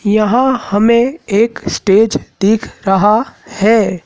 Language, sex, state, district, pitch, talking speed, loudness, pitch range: Hindi, male, Madhya Pradesh, Dhar, 215 Hz, 105 wpm, -13 LUFS, 205-230 Hz